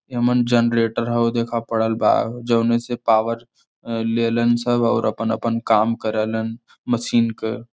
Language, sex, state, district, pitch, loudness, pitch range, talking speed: Bhojpuri, male, Uttar Pradesh, Varanasi, 115 Hz, -20 LUFS, 115-120 Hz, 150 wpm